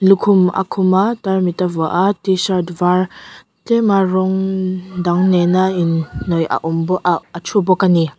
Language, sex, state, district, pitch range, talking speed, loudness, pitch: Mizo, female, Mizoram, Aizawl, 175-190 Hz, 170 wpm, -16 LUFS, 185 Hz